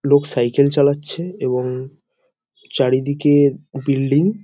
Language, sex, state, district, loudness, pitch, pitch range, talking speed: Bengali, male, West Bengal, Paschim Medinipur, -18 LUFS, 140 Hz, 135-150 Hz, 95 wpm